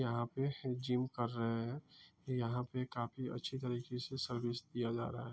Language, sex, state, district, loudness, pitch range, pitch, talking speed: Hindi, male, Bihar, East Champaran, -40 LUFS, 120-130 Hz, 125 Hz, 190 wpm